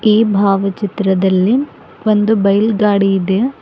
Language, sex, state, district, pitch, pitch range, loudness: Kannada, female, Karnataka, Bidar, 205 Hz, 195-220 Hz, -14 LUFS